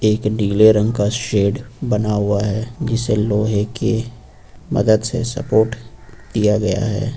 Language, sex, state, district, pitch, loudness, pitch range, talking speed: Hindi, male, Uttar Pradesh, Lucknow, 110 Hz, -18 LUFS, 105-115 Hz, 140 wpm